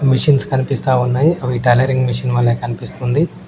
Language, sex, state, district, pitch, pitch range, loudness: Telugu, male, Telangana, Mahabubabad, 130 Hz, 120-135 Hz, -16 LUFS